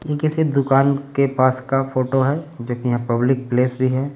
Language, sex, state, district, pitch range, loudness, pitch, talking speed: Hindi, male, Uttar Pradesh, Varanasi, 130-140 Hz, -19 LUFS, 135 Hz, 215 wpm